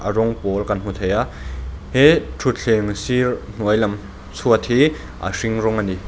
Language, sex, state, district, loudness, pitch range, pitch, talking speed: Mizo, male, Mizoram, Aizawl, -19 LUFS, 95-110 Hz, 105 Hz, 160 wpm